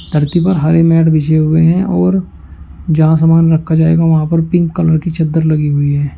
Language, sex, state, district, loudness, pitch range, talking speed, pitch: Hindi, male, Uttar Pradesh, Shamli, -11 LUFS, 150-165 Hz, 205 wpm, 160 Hz